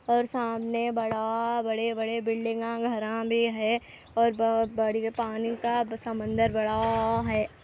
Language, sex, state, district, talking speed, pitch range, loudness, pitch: Hindi, female, Andhra Pradesh, Anantapur, 135 wpm, 225-230 Hz, -28 LUFS, 225 Hz